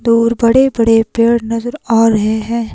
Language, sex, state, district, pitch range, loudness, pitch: Hindi, female, Himachal Pradesh, Shimla, 225-235 Hz, -13 LUFS, 230 Hz